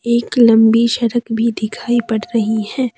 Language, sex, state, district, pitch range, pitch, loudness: Hindi, female, Jharkhand, Deoghar, 225-235 Hz, 230 Hz, -15 LUFS